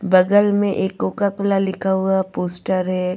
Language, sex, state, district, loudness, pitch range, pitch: Hindi, female, Goa, North and South Goa, -19 LUFS, 185-200 Hz, 190 Hz